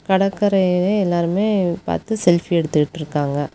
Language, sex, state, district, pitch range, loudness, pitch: Tamil, female, Tamil Nadu, Kanyakumari, 160-195 Hz, -19 LUFS, 180 Hz